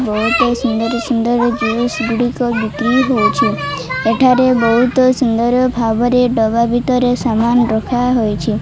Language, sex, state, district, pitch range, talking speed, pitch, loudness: Odia, female, Odisha, Malkangiri, 225-245 Hz, 105 wpm, 235 Hz, -14 LUFS